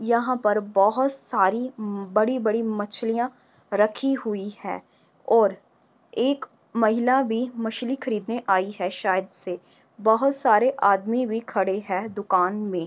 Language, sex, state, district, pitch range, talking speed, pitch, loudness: Hindi, female, Uttar Pradesh, Varanasi, 200-245 Hz, 130 wpm, 215 Hz, -24 LUFS